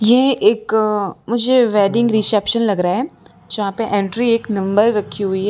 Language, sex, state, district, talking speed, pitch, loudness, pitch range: Hindi, female, Gujarat, Valsad, 185 wpm, 215 Hz, -16 LUFS, 200-235 Hz